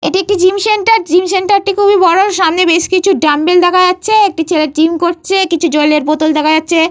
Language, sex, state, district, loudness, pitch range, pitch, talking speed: Bengali, female, Jharkhand, Jamtara, -10 LUFS, 320-390 Hz, 360 Hz, 225 wpm